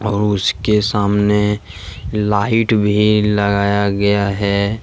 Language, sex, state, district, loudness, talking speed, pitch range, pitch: Hindi, male, Jharkhand, Deoghar, -16 LUFS, 100 wpm, 100-105 Hz, 105 Hz